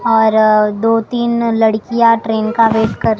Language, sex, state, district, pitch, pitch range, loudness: Hindi, female, Maharashtra, Mumbai Suburban, 225 Hz, 220-230 Hz, -13 LUFS